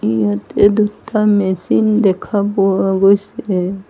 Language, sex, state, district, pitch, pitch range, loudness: Assamese, female, Assam, Sonitpur, 195 Hz, 190-210 Hz, -15 LUFS